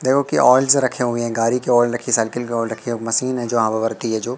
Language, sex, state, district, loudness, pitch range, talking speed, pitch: Hindi, male, Madhya Pradesh, Katni, -18 LUFS, 115-125 Hz, 300 wpm, 120 Hz